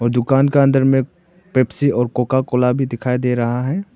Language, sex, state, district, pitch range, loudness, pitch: Hindi, male, Arunachal Pradesh, Papum Pare, 125-140 Hz, -17 LUFS, 130 Hz